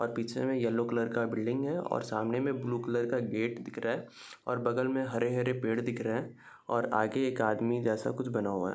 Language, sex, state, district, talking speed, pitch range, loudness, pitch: Hindi, male, Bihar, Saharsa, 245 wpm, 115-125 Hz, -32 LUFS, 120 Hz